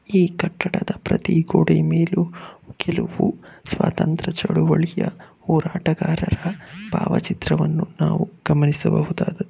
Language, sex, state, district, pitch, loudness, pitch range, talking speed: Kannada, male, Karnataka, Bangalore, 180 Hz, -21 LUFS, 165-190 Hz, 75 wpm